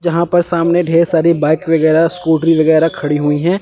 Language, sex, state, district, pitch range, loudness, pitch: Hindi, male, Chandigarh, Chandigarh, 160-170 Hz, -13 LUFS, 165 Hz